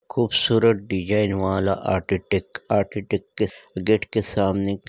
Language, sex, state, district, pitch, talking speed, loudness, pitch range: Hindi, female, Maharashtra, Nagpur, 100 Hz, 120 wpm, -22 LUFS, 95-110 Hz